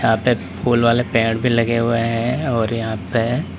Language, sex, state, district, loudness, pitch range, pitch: Hindi, male, Uttar Pradesh, Lalitpur, -18 LUFS, 115-120 Hz, 115 Hz